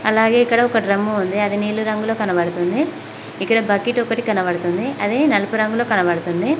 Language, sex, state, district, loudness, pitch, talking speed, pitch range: Telugu, female, Telangana, Mahabubabad, -18 LUFS, 215 Hz, 155 wpm, 200-235 Hz